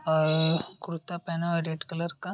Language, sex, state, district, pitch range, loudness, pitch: Hindi, male, Uttar Pradesh, Deoria, 160-170 Hz, -29 LUFS, 165 Hz